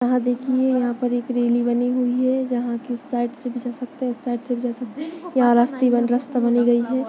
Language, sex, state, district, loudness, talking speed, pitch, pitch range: Hindi, female, Chhattisgarh, Bastar, -21 LUFS, 270 wpm, 245 Hz, 240-255 Hz